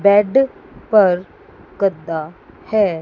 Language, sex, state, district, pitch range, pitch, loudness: Hindi, female, Chandigarh, Chandigarh, 175-210 Hz, 195 Hz, -17 LUFS